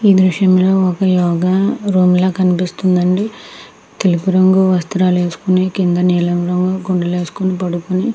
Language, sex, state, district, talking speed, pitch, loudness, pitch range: Telugu, female, Andhra Pradesh, Krishna, 145 wpm, 185 Hz, -14 LUFS, 180-190 Hz